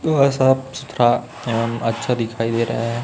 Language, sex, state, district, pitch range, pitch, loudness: Hindi, male, Chhattisgarh, Raipur, 115-130 Hz, 120 Hz, -19 LUFS